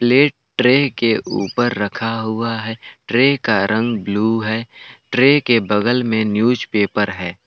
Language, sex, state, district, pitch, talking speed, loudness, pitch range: Hindi, male, Jharkhand, Palamu, 115 Hz, 145 wpm, -17 LUFS, 110-125 Hz